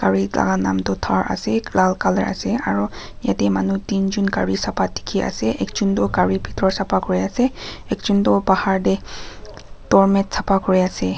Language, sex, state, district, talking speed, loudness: Nagamese, female, Nagaland, Kohima, 170 wpm, -19 LUFS